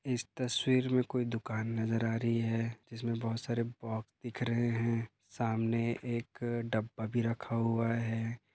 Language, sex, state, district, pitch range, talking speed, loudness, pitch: Hindi, male, Goa, North and South Goa, 115-120 Hz, 160 wpm, -34 LUFS, 115 Hz